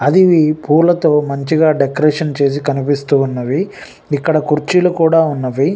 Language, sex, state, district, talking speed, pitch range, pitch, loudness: Telugu, male, Telangana, Nalgonda, 105 wpm, 140-160 Hz, 150 Hz, -14 LUFS